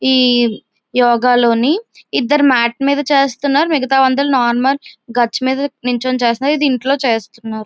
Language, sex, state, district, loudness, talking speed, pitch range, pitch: Telugu, female, Andhra Pradesh, Visakhapatnam, -14 LUFS, 135 wpm, 240-280 Hz, 260 Hz